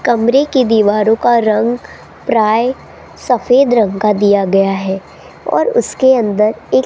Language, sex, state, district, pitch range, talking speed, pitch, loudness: Hindi, female, Rajasthan, Jaipur, 205-245 Hz, 150 wpm, 220 Hz, -13 LUFS